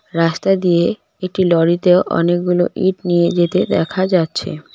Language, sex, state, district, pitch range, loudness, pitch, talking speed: Bengali, female, West Bengal, Cooch Behar, 170-185 Hz, -16 LUFS, 175 Hz, 125 wpm